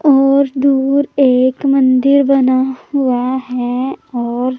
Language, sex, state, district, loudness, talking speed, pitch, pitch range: Hindi, female, Punjab, Pathankot, -13 LUFS, 105 wpm, 265 Hz, 255-275 Hz